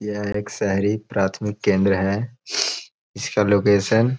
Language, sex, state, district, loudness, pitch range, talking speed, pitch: Hindi, male, Bihar, Gaya, -21 LUFS, 100-105 Hz, 130 wpm, 105 Hz